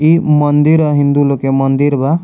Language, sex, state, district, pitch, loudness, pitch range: Bhojpuri, male, Bihar, Muzaffarpur, 145 Hz, -12 LUFS, 140-155 Hz